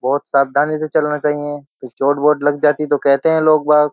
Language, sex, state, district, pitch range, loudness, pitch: Hindi, male, Uttar Pradesh, Jyotiba Phule Nagar, 140-150 Hz, -16 LUFS, 145 Hz